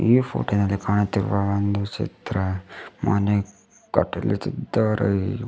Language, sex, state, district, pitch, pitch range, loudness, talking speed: Kannada, male, Karnataka, Bidar, 100 Hz, 100-110 Hz, -23 LUFS, 90 wpm